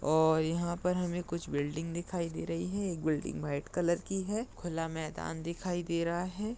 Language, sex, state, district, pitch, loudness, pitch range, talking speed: Hindi, male, Maharashtra, Dhule, 170 Hz, -34 LUFS, 160-180 Hz, 200 wpm